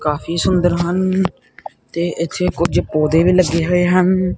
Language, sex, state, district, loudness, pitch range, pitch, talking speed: Punjabi, male, Punjab, Kapurthala, -16 LUFS, 165-185 Hz, 175 Hz, 150 wpm